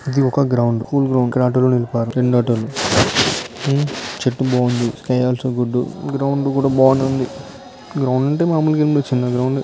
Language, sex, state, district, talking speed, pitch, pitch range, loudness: Telugu, male, Telangana, Karimnagar, 155 wpm, 130 Hz, 125-140 Hz, -17 LUFS